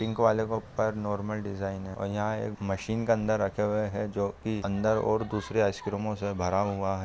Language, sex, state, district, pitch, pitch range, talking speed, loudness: Hindi, male, Andhra Pradesh, Guntur, 105 Hz, 100-110 Hz, 220 wpm, -30 LUFS